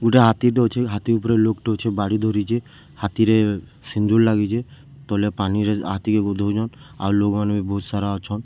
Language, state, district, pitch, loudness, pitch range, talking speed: Sambalpuri, Odisha, Sambalpur, 110 Hz, -21 LUFS, 100-115 Hz, 205 wpm